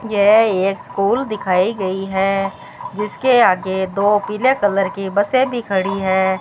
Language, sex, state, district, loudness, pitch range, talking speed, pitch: Hindi, female, Rajasthan, Bikaner, -17 LUFS, 190-215 Hz, 150 wpm, 195 Hz